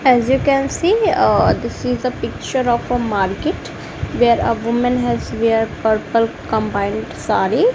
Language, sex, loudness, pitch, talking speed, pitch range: English, female, -17 LUFS, 240 Hz, 155 wpm, 225-255 Hz